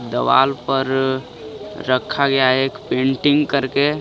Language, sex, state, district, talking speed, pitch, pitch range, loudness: Hindi, male, Jharkhand, Garhwa, 105 wpm, 135 Hz, 130-145 Hz, -18 LUFS